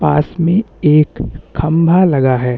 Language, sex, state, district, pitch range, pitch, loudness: Hindi, male, Chhattisgarh, Bastar, 140-170 Hz, 150 Hz, -13 LUFS